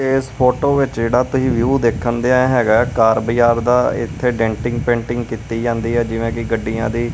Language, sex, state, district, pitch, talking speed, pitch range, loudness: Punjabi, male, Punjab, Kapurthala, 120 Hz, 185 wpm, 115-125 Hz, -17 LUFS